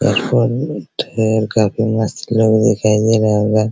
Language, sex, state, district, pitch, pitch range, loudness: Hindi, male, Bihar, Araria, 110 Hz, 105-115 Hz, -15 LUFS